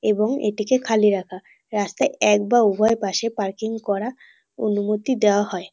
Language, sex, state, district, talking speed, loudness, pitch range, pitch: Bengali, female, West Bengal, North 24 Parganas, 145 wpm, -21 LUFS, 205-225 Hz, 210 Hz